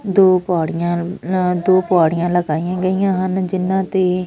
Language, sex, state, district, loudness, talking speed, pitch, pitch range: Punjabi, female, Punjab, Fazilka, -17 LUFS, 125 wpm, 185 Hz, 175-190 Hz